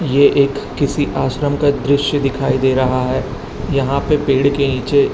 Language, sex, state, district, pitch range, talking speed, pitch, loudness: Hindi, male, Chhattisgarh, Raipur, 130-140 Hz, 175 wpm, 140 Hz, -16 LUFS